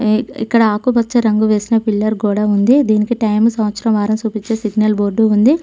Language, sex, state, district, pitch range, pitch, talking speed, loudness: Telugu, female, Telangana, Mahabubabad, 215-230 Hz, 220 Hz, 160 wpm, -15 LUFS